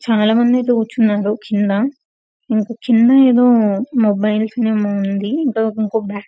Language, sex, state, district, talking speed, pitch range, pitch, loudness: Telugu, female, Telangana, Karimnagar, 125 wpm, 210-245 Hz, 220 Hz, -15 LUFS